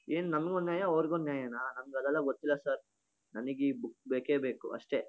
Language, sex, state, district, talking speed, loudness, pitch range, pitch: Kannada, male, Karnataka, Shimoga, 190 wpm, -35 LUFS, 130-155 Hz, 140 Hz